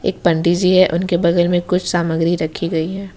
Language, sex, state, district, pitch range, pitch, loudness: Hindi, female, Jharkhand, Ranchi, 170-180 Hz, 175 Hz, -16 LUFS